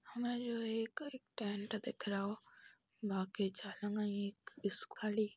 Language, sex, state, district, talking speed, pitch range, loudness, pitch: Bundeli, female, Uttar Pradesh, Hamirpur, 100 wpm, 205-235 Hz, -42 LUFS, 210 Hz